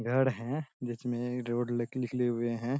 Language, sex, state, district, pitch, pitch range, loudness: Hindi, male, Bihar, Saharsa, 120 Hz, 120-130 Hz, -33 LUFS